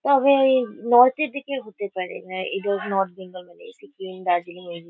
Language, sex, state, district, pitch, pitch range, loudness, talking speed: Bengali, female, West Bengal, Kolkata, 200 Hz, 185-275 Hz, -22 LUFS, 185 wpm